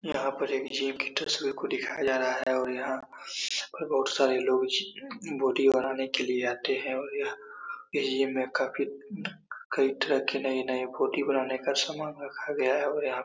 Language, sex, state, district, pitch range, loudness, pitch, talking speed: Hindi, male, Uttar Pradesh, Muzaffarnagar, 130-150 Hz, -29 LUFS, 135 Hz, 170 wpm